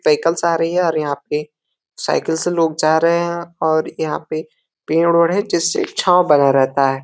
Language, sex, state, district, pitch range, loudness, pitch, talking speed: Hindi, male, Uttar Pradesh, Deoria, 150-170 Hz, -17 LUFS, 160 Hz, 205 wpm